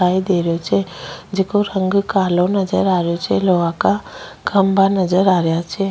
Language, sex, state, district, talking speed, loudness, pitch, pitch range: Rajasthani, female, Rajasthan, Nagaur, 185 wpm, -17 LUFS, 190 Hz, 175-195 Hz